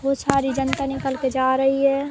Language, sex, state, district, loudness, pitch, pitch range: Hindi, female, Uttar Pradesh, Jalaun, -21 LUFS, 270 Hz, 265-275 Hz